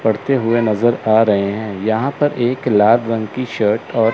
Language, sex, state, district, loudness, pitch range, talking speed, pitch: Hindi, male, Chandigarh, Chandigarh, -16 LUFS, 110-120 Hz, 200 wpm, 115 Hz